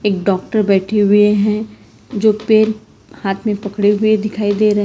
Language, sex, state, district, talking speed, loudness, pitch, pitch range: Hindi, female, Karnataka, Bangalore, 185 wpm, -15 LUFS, 210 Hz, 205-215 Hz